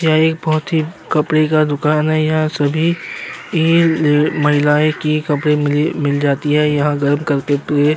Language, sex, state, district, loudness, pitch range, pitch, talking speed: Hindi, male, Uttar Pradesh, Jyotiba Phule Nagar, -15 LUFS, 145-155 Hz, 150 Hz, 180 wpm